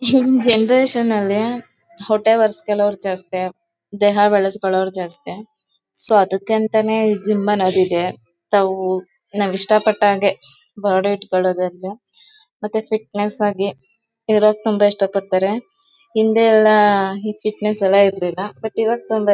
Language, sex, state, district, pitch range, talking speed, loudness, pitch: Kannada, female, Karnataka, Mysore, 195-220 Hz, 120 wpm, -17 LUFS, 205 Hz